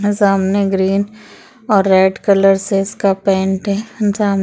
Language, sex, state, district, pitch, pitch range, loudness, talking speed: Hindi, female, Maharashtra, Chandrapur, 200 Hz, 195-205 Hz, -15 LUFS, 150 wpm